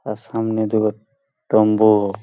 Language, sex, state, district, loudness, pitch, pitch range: Bengali, male, West Bengal, Purulia, -18 LUFS, 110 Hz, 105-110 Hz